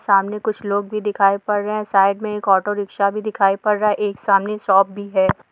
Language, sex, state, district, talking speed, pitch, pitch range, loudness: Hindi, female, Bihar, Saharsa, 215 wpm, 205 Hz, 195-210 Hz, -19 LUFS